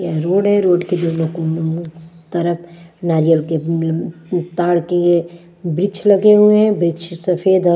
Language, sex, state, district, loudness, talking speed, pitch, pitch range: Hindi, female, Bihar, West Champaran, -16 LUFS, 160 wpm, 170 Hz, 165-180 Hz